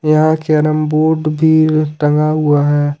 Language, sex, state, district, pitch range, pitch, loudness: Hindi, male, Jharkhand, Ranchi, 150-155 Hz, 155 Hz, -13 LUFS